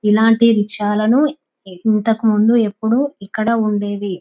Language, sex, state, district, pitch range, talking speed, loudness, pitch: Telugu, female, Telangana, Nalgonda, 205-230 Hz, 100 wpm, -16 LUFS, 215 Hz